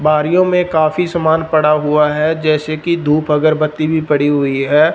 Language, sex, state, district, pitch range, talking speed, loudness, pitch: Hindi, male, Punjab, Fazilka, 150-160 Hz, 180 wpm, -14 LUFS, 155 Hz